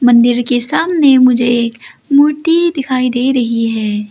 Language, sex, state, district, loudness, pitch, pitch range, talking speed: Hindi, female, Arunachal Pradesh, Lower Dibang Valley, -12 LUFS, 250 Hz, 235-280 Hz, 145 wpm